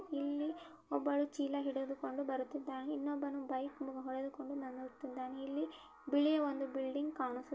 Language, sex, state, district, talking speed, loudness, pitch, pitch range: Kannada, female, Karnataka, Belgaum, 95 wpm, -40 LUFS, 280 Hz, 265-290 Hz